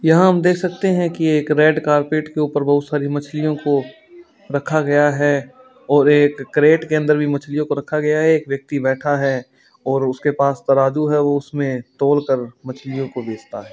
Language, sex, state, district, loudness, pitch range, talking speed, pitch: Hindi, male, Rajasthan, Churu, -17 LUFS, 140-155 Hz, 195 wpm, 145 Hz